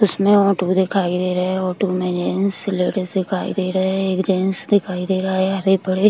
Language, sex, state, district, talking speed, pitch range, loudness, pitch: Hindi, female, Bihar, Kishanganj, 235 wpm, 185-195 Hz, -19 LUFS, 190 Hz